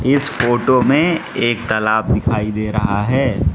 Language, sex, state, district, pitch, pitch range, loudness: Hindi, male, Mizoram, Aizawl, 115 Hz, 105-130 Hz, -16 LUFS